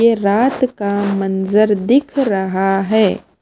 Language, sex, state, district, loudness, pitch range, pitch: Hindi, female, Himachal Pradesh, Shimla, -16 LUFS, 195-235 Hz, 205 Hz